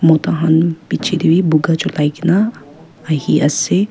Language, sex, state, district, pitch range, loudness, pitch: Nagamese, female, Nagaland, Kohima, 155-175 Hz, -15 LUFS, 160 Hz